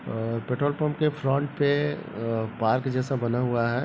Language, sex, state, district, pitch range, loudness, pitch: Hindi, male, Bihar, Begusarai, 115-145 Hz, -26 LUFS, 130 Hz